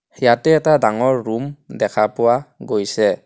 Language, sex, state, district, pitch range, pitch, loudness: Assamese, male, Assam, Kamrup Metropolitan, 115-150 Hz, 125 Hz, -17 LUFS